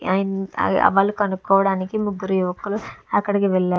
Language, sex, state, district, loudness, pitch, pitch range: Telugu, female, Andhra Pradesh, Visakhapatnam, -21 LUFS, 195 Hz, 190-205 Hz